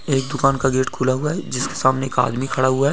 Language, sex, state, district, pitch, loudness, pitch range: Hindi, male, Uttar Pradesh, Budaun, 135 Hz, -20 LUFS, 130-135 Hz